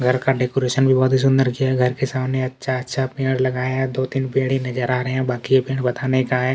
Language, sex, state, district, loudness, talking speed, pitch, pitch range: Hindi, male, Chhattisgarh, Kabirdham, -20 LUFS, 245 wpm, 130 Hz, 125-130 Hz